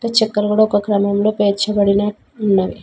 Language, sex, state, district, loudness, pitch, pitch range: Telugu, female, Telangana, Mahabubabad, -16 LUFS, 210 Hz, 200-215 Hz